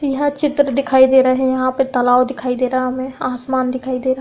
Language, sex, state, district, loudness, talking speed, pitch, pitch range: Hindi, female, Uttar Pradesh, Budaun, -16 LUFS, 255 wpm, 260 Hz, 255-265 Hz